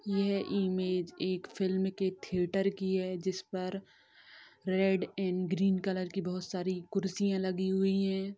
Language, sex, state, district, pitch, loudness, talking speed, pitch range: Hindi, female, Bihar, Sitamarhi, 190 Hz, -33 LUFS, 150 wpm, 185-195 Hz